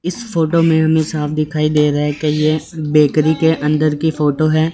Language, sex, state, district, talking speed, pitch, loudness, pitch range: Hindi, male, Chandigarh, Chandigarh, 215 wpm, 155 Hz, -15 LUFS, 150-160 Hz